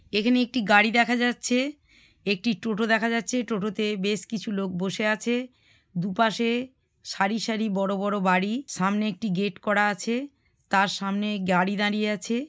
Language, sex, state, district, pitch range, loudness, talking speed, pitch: Bengali, female, West Bengal, Malda, 200-235 Hz, -25 LUFS, 150 wpm, 215 Hz